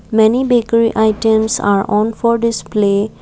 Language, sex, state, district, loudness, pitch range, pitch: English, female, Assam, Kamrup Metropolitan, -14 LUFS, 210-230 Hz, 220 Hz